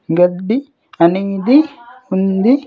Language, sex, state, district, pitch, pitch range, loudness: Telugu, male, Andhra Pradesh, Sri Satya Sai, 220 Hz, 190-270 Hz, -15 LUFS